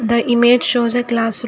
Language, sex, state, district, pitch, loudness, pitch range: English, female, Karnataka, Bangalore, 240 Hz, -15 LUFS, 235-245 Hz